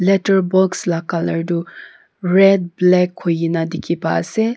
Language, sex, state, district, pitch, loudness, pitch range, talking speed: Nagamese, female, Nagaland, Kohima, 180 Hz, -17 LUFS, 170-195 Hz, 155 wpm